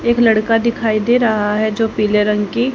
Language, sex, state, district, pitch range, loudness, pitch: Hindi, female, Haryana, Rohtak, 210-235 Hz, -15 LUFS, 225 Hz